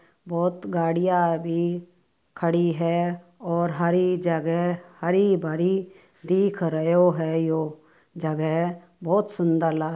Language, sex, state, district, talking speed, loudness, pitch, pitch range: Marwari, female, Rajasthan, Churu, 115 wpm, -24 LUFS, 170 Hz, 165-175 Hz